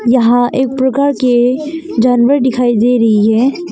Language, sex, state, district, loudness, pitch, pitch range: Hindi, female, Arunachal Pradesh, Longding, -12 LUFS, 250 Hz, 240-265 Hz